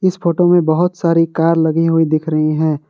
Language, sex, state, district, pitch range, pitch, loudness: Hindi, male, Jharkhand, Garhwa, 155-175 Hz, 165 Hz, -14 LUFS